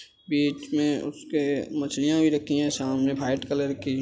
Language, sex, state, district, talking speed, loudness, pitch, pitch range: Hindi, male, Uttar Pradesh, Budaun, 180 wpm, -26 LUFS, 145 Hz, 140-150 Hz